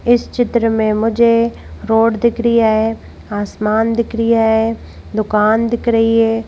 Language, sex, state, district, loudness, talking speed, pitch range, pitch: Hindi, female, Madhya Pradesh, Bhopal, -15 LUFS, 150 wpm, 220-235 Hz, 225 Hz